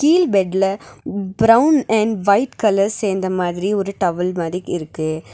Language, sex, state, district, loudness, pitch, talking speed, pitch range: Tamil, female, Tamil Nadu, Nilgiris, -18 LUFS, 195 Hz, 135 wpm, 180-215 Hz